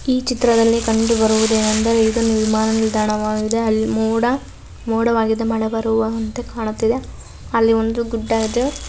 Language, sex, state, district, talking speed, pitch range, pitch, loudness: Kannada, female, Karnataka, Belgaum, 120 wpm, 220-230 Hz, 225 Hz, -18 LUFS